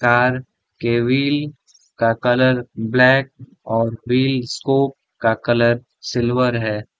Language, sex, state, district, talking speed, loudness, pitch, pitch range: Hindi, male, Bihar, Gaya, 120 wpm, -18 LUFS, 125 Hz, 120-130 Hz